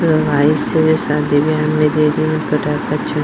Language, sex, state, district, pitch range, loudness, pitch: Bhojpuri, female, Bihar, Saran, 150-155 Hz, -15 LUFS, 155 Hz